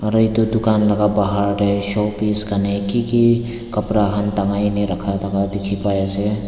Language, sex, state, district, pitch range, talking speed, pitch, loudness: Nagamese, male, Nagaland, Dimapur, 100-105 Hz, 130 wpm, 105 Hz, -17 LUFS